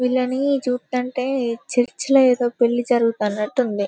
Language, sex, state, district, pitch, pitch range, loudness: Telugu, female, Telangana, Karimnagar, 250 Hz, 235-255 Hz, -20 LUFS